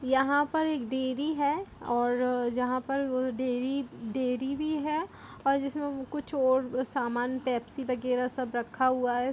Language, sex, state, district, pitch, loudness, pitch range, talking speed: Hindi, female, Bihar, Lakhisarai, 260 Hz, -30 LUFS, 250-275 Hz, 150 wpm